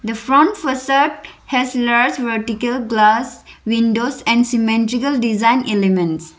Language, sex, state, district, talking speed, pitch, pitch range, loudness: English, female, Arunachal Pradesh, Lower Dibang Valley, 115 wpm, 235 Hz, 225-255 Hz, -16 LUFS